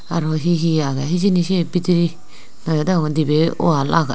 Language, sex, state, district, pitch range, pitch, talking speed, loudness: Chakma, female, Tripura, Unakoti, 155-175 Hz, 165 Hz, 175 wpm, -18 LUFS